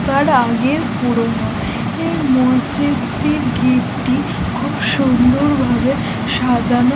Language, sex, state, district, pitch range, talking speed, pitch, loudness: Bengali, female, West Bengal, North 24 Parganas, 245-265 Hz, 110 wpm, 250 Hz, -16 LUFS